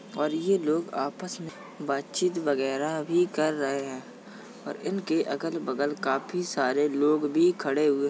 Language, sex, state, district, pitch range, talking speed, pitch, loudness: Hindi, male, Uttar Pradesh, Jalaun, 145-180 Hz, 170 wpm, 155 Hz, -28 LUFS